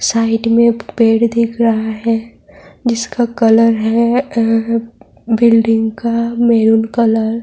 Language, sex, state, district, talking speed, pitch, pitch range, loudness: Urdu, female, Bihar, Saharsa, 115 wpm, 230 Hz, 225-235 Hz, -13 LUFS